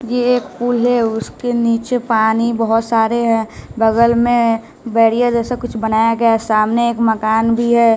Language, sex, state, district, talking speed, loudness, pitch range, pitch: Hindi, male, Bihar, West Champaran, 175 wpm, -15 LUFS, 225-240 Hz, 230 Hz